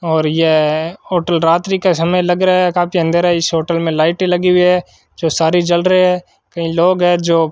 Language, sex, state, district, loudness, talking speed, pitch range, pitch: Hindi, male, Rajasthan, Bikaner, -14 LUFS, 225 wpm, 165-180 Hz, 175 Hz